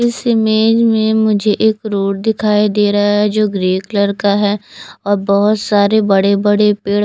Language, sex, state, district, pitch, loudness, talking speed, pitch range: Hindi, female, Chandigarh, Chandigarh, 210 Hz, -13 LUFS, 185 wpm, 200-220 Hz